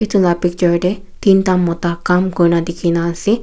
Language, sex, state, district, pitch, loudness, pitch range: Nagamese, female, Nagaland, Kohima, 175 Hz, -15 LUFS, 170-190 Hz